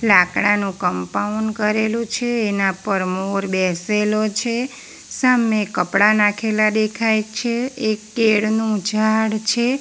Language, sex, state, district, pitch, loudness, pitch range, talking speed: Gujarati, female, Gujarat, Valsad, 215 Hz, -19 LUFS, 200-225 Hz, 115 wpm